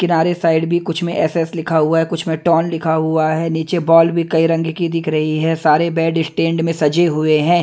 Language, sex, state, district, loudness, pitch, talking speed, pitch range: Hindi, male, Himachal Pradesh, Shimla, -16 LUFS, 165 Hz, 235 wpm, 160-170 Hz